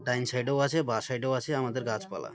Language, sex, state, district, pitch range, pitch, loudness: Bengali, male, West Bengal, Malda, 125-135 Hz, 125 Hz, -30 LUFS